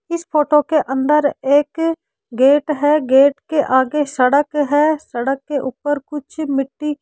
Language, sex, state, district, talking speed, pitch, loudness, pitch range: Hindi, male, Rajasthan, Jaipur, 155 wpm, 290 Hz, -17 LUFS, 275-300 Hz